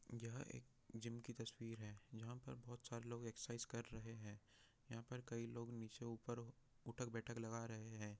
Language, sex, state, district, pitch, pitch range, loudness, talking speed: Hindi, male, Bihar, Jahanabad, 115 Hz, 115-120 Hz, -53 LUFS, 190 wpm